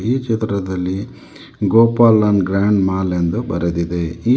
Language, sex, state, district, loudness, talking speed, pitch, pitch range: Kannada, male, Karnataka, Bangalore, -17 LUFS, 125 wpm, 100 Hz, 90-115 Hz